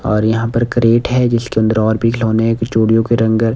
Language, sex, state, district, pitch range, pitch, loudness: Hindi, male, Himachal Pradesh, Shimla, 110-115 Hz, 115 Hz, -14 LUFS